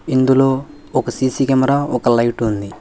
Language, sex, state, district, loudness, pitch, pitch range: Telugu, male, Telangana, Hyderabad, -16 LUFS, 130 Hz, 120-135 Hz